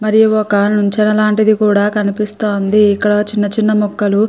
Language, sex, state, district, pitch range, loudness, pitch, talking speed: Telugu, female, Andhra Pradesh, Chittoor, 205-215 Hz, -13 LUFS, 210 Hz, 155 wpm